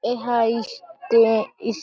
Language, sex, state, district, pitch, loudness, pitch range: Chhattisgarhi, female, Chhattisgarh, Jashpur, 230 Hz, -20 LUFS, 225-245 Hz